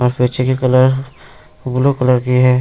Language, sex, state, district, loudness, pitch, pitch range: Hindi, male, Bihar, Jamui, -14 LUFS, 125 Hz, 125-130 Hz